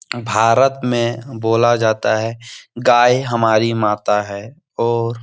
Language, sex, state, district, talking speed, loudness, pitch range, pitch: Hindi, male, Bihar, Jahanabad, 125 wpm, -16 LUFS, 110-120 Hz, 115 Hz